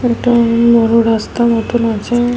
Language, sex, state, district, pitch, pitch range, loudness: Bengali, female, West Bengal, Malda, 235 Hz, 230-240 Hz, -12 LUFS